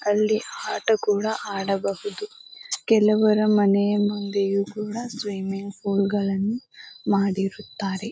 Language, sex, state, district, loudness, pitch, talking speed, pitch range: Kannada, female, Karnataka, Bijapur, -24 LUFS, 205 Hz, 95 wpm, 200-215 Hz